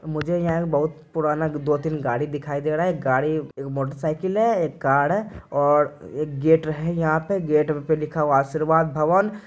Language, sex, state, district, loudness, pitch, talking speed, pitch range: Hindi, male, Bihar, Purnia, -22 LUFS, 155 Hz, 195 wpm, 145-160 Hz